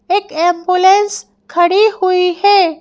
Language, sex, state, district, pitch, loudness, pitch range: Hindi, female, Madhya Pradesh, Bhopal, 365 Hz, -12 LUFS, 345-400 Hz